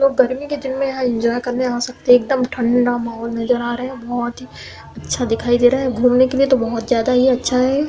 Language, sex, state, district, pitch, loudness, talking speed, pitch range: Hindi, female, Uttar Pradesh, Hamirpur, 250 Hz, -17 LUFS, 265 wpm, 240-260 Hz